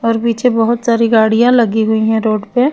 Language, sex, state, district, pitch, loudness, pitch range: Hindi, female, Bihar, Patna, 230 Hz, -13 LUFS, 220-235 Hz